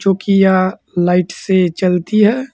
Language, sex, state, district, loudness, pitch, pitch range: Hindi, male, Uttar Pradesh, Saharanpur, -14 LUFS, 190 Hz, 180-200 Hz